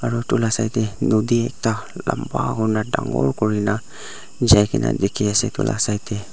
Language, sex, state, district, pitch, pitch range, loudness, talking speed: Nagamese, male, Nagaland, Dimapur, 110 Hz, 105-120 Hz, -20 LUFS, 150 wpm